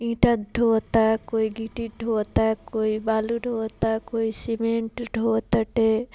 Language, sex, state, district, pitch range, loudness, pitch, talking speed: Bhojpuri, female, Bihar, Muzaffarpur, 220-230 Hz, -24 LUFS, 225 Hz, 115 wpm